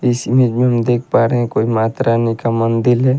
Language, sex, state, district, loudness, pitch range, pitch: Hindi, male, Haryana, Rohtak, -15 LUFS, 115-125 Hz, 120 Hz